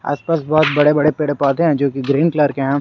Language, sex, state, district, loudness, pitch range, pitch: Hindi, male, Jharkhand, Garhwa, -16 LUFS, 140-155 Hz, 145 Hz